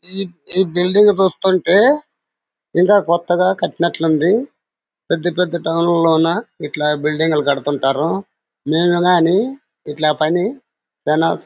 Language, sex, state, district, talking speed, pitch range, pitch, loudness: Telugu, male, Andhra Pradesh, Anantapur, 100 wpm, 160-190 Hz, 175 Hz, -16 LUFS